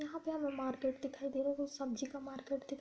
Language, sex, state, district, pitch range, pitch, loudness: Hindi, female, Uttar Pradesh, Budaun, 265-285 Hz, 275 Hz, -40 LUFS